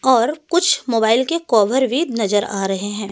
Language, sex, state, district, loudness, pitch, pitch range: Hindi, female, Delhi, New Delhi, -17 LUFS, 230 Hz, 205-270 Hz